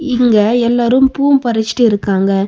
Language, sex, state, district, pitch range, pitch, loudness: Tamil, female, Tamil Nadu, Nilgiris, 210-255 Hz, 235 Hz, -12 LUFS